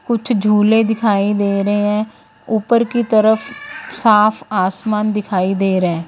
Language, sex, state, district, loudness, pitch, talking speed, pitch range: Hindi, female, Punjab, Fazilka, -16 LUFS, 215 Hz, 150 wpm, 200-225 Hz